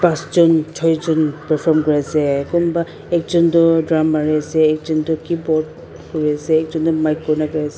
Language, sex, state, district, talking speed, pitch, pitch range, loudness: Nagamese, female, Nagaland, Dimapur, 130 wpm, 160 Hz, 155-165 Hz, -17 LUFS